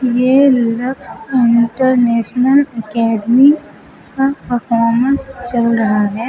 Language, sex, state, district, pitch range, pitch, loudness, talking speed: Hindi, female, Uttar Pradesh, Lucknow, 230-265 Hz, 245 Hz, -14 LUFS, 85 wpm